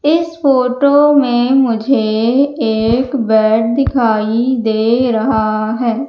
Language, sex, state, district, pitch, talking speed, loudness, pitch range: Hindi, female, Madhya Pradesh, Umaria, 240 Hz, 100 wpm, -13 LUFS, 220-270 Hz